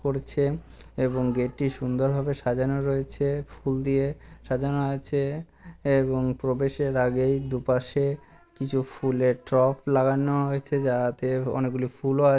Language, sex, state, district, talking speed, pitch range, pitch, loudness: Bengali, male, West Bengal, Malda, 120 wpm, 130-140 Hz, 135 Hz, -26 LUFS